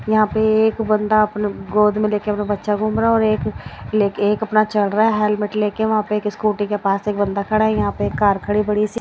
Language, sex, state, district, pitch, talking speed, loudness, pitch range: Hindi, female, Odisha, Nuapada, 210 Hz, 275 wpm, -18 LUFS, 205-215 Hz